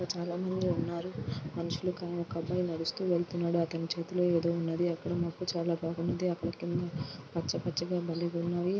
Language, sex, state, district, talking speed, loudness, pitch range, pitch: Telugu, female, Andhra Pradesh, Guntur, 145 wpm, -33 LUFS, 170-175 Hz, 170 Hz